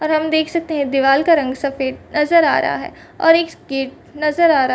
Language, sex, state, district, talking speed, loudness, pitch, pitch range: Hindi, female, Chhattisgarh, Rajnandgaon, 250 wpm, -17 LUFS, 300 Hz, 270-325 Hz